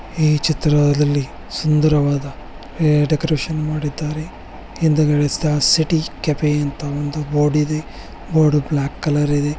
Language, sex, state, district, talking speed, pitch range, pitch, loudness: Kannada, male, Karnataka, Bellary, 100 wpm, 145-155 Hz, 150 Hz, -18 LUFS